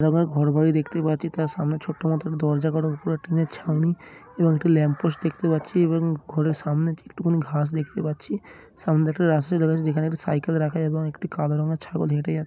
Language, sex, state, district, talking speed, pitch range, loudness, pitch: Bengali, male, West Bengal, Dakshin Dinajpur, 190 wpm, 155-165 Hz, -24 LUFS, 160 Hz